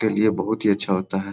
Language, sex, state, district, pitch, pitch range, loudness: Hindi, male, Bihar, Samastipur, 105 Hz, 95-110 Hz, -22 LUFS